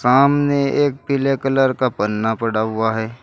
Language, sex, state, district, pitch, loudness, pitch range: Hindi, male, Uttar Pradesh, Saharanpur, 130 Hz, -18 LUFS, 110-140 Hz